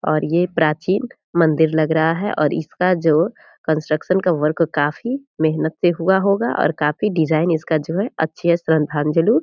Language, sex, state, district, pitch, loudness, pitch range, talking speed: Hindi, female, Bihar, Purnia, 160 Hz, -18 LUFS, 155-180 Hz, 165 wpm